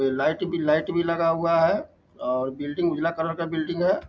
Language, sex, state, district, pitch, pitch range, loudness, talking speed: Hindi, male, Bihar, Lakhisarai, 165 Hz, 150-170 Hz, -25 LUFS, 220 wpm